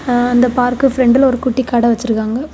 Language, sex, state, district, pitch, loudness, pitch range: Tamil, female, Tamil Nadu, Kanyakumari, 245 Hz, -13 LUFS, 240-255 Hz